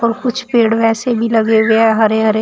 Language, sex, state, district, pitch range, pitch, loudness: Hindi, female, Uttar Pradesh, Shamli, 220-235 Hz, 225 Hz, -13 LUFS